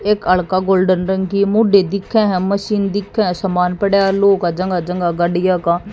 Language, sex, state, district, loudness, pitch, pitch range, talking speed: Hindi, female, Haryana, Jhajjar, -16 LUFS, 190 Hz, 180-200 Hz, 180 wpm